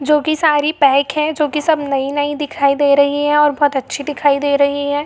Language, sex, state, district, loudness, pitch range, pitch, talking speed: Hindi, female, Jharkhand, Jamtara, -15 LUFS, 280-295 Hz, 290 Hz, 225 wpm